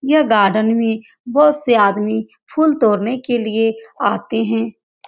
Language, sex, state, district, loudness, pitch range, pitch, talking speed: Hindi, female, Bihar, Saran, -16 LUFS, 220-250 Hz, 225 Hz, 140 wpm